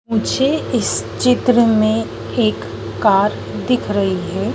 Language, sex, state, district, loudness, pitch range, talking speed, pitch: Hindi, female, Madhya Pradesh, Dhar, -17 LUFS, 190-240 Hz, 120 wpm, 215 Hz